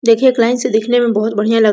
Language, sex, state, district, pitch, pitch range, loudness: Hindi, female, Bihar, Araria, 230 Hz, 220-245 Hz, -14 LUFS